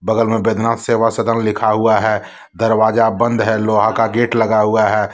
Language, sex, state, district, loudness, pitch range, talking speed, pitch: Hindi, male, Jharkhand, Deoghar, -15 LUFS, 110-115 Hz, 175 wpm, 110 Hz